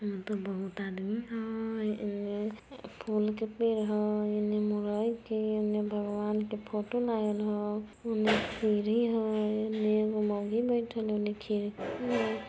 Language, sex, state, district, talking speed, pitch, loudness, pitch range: Maithili, female, Bihar, Samastipur, 65 wpm, 210 Hz, -32 LUFS, 210-220 Hz